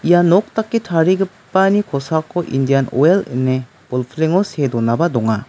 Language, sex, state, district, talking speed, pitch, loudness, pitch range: Garo, male, Meghalaya, West Garo Hills, 130 wpm, 160 Hz, -17 LUFS, 130-185 Hz